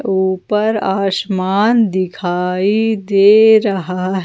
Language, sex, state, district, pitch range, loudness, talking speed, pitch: Hindi, female, Jharkhand, Ranchi, 185-210 Hz, -14 LUFS, 85 wpm, 195 Hz